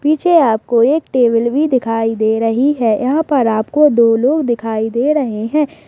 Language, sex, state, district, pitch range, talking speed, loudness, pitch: Hindi, female, Maharashtra, Aurangabad, 225-295 Hz, 185 wpm, -14 LUFS, 245 Hz